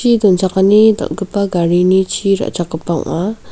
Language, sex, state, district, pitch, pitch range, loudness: Garo, female, Meghalaya, South Garo Hills, 190 Hz, 175-200 Hz, -14 LUFS